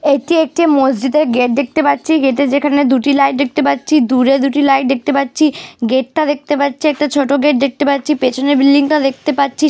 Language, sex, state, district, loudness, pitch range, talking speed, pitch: Bengali, female, West Bengal, Dakshin Dinajpur, -13 LUFS, 270-295 Hz, 205 wpm, 280 Hz